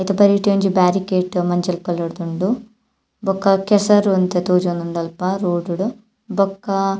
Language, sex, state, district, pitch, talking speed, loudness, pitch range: Tulu, female, Karnataka, Dakshina Kannada, 195 Hz, 130 wpm, -18 LUFS, 180-200 Hz